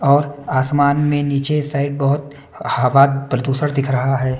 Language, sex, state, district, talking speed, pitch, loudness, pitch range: Hindi, male, Bihar, West Champaran, 150 wpm, 140 Hz, -17 LUFS, 135-145 Hz